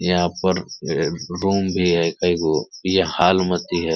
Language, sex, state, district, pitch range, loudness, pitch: Hindi, male, Uttar Pradesh, Ghazipur, 85-95 Hz, -20 LUFS, 90 Hz